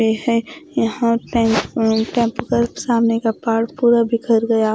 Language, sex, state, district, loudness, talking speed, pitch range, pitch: Hindi, female, Odisha, Khordha, -18 LUFS, 125 wpm, 225-235 Hz, 230 Hz